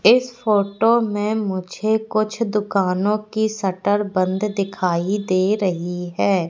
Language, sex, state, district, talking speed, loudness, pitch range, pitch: Hindi, female, Madhya Pradesh, Katni, 120 wpm, -20 LUFS, 185-215 Hz, 205 Hz